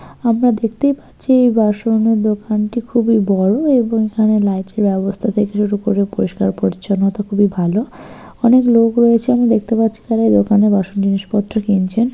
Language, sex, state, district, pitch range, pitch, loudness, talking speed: Bengali, female, West Bengal, Purulia, 200-230 Hz, 215 Hz, -15 LUFS, 165 wpm